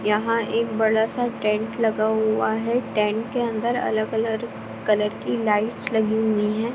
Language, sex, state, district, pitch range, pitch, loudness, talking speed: Hindi, female, Bihar, Supaul, 215-230 Hz, 220 Hz, -23 LUFS, 160 wpm